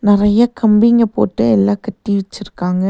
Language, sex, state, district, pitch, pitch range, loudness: Tamil, female, Tamil Nadu, Nilgiris, 205 Hz, 200-225 Hz, -14 LUFS